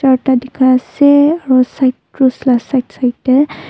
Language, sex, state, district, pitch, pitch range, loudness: Nagamese, female, Nagaland, Dimapur, 260 Hz, 255-275 Hz, -12 LUFS